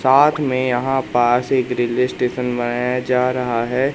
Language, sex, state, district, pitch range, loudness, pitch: Hindi, male, Madhya Pradesh, Katni, 125-130 Hz, -18 LUFS, 125 Hz